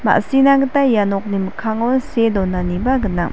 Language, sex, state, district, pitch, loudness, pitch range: Garo, female, Meghalaya, South Garo Hills, 220 Hz, -17 LUFS, 195-260 Hz